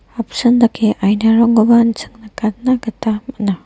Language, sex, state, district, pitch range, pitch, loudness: Garo, female, Meghalaya, West Garo Hills, 215-235 Hz, 225 Hz, -14 LUFS